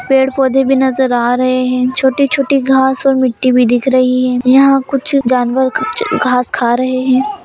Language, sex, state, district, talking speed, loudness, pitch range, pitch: Hindi, female, Bihar, Madhepura, 175 wpm, -12 LUFS, 255-270 Hz, 260 Hz